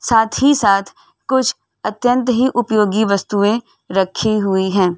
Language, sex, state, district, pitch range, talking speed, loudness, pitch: Hindi, female, Uttar Pradesh, Varanasi, 195-245 Hz, 130 wpm, -16 LUFS, 220 Hz